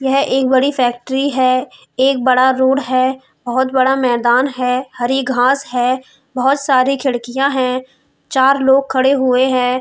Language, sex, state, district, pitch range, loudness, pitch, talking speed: Hindi, female, Uttar Pradesh, Hamirpur, 255-270 Hz, -15 LUFS, 260 Hz, 155 wpm